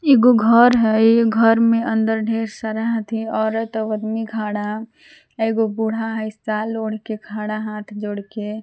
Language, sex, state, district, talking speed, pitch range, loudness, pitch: Magahi, female, Jharkhand, Palamu, 165 wpm, 215-225 Hz, -19 LUFS, 220 Hz